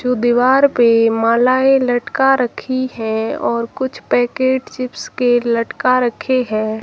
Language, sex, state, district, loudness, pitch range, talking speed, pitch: Hindi, female, Rajasthan, Jaisalmer, -16 LUFS, 235-260 Hz, 130 wpm, 250 Hz